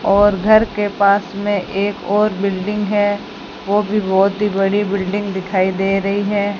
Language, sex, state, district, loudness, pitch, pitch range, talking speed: Hindi, female, Rajasthan, Bikaner, -17 LUFS, 205 Hz, 195-205 Hz, 175 wpm